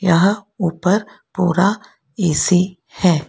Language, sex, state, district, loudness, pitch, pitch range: Hindi, female, Karnataka, Bangalore, -18 LUFS, 185 Hz, 175-200 Hz